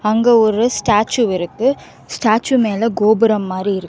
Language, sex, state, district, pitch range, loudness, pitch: Tamil, female, Karnataka, Bangalore, 210-235 Hz, -15 LUFS, 220 Hz